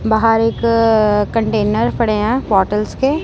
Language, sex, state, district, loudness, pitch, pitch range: Hindi, male, Punjab, Kapurthala, -15 LUFS, 220 Hz, 210-230 Hz